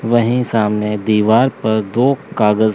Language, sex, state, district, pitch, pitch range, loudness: Hindi, male, Chandigarh, Chandigarh, 110 Hz, 105-120 Hz, -15 LUFS